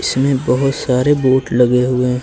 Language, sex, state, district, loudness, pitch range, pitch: Hindi, male, Uttar Pradesh, Lucknow, -15 LUFS, 125-135 Hz, 130 Hz